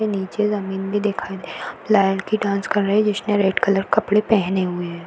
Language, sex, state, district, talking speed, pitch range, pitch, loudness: Hindi, female, Uttar Pradesh, Varanasi, 180 wpm, 190-210 Hz, 200 Hz, -20 LUFS